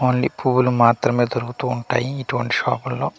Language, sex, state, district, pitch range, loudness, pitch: Telugu, male, Andhra Pradesh, Manyam, 120-125 Hz, -20 LUFS, 125 Hz